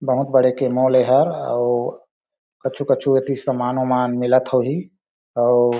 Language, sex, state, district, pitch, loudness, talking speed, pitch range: Chhattisgarhi, male, Chhattisgarh, Sarguja, 130 Hz, -19 LUFS, 135 wpm, 125-135 Hz